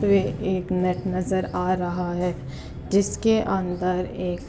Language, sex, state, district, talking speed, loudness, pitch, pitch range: Hindi, female, Uttar Pradesh, Muzaffarnagar, 145 wpm, -24 LUFS, 185 Hz, 180-190 Hz